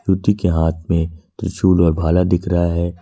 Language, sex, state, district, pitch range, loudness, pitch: Hindi, male, Jharkhand, Ranchi, 85-95 Hz, -17 LUFS, 85 Hz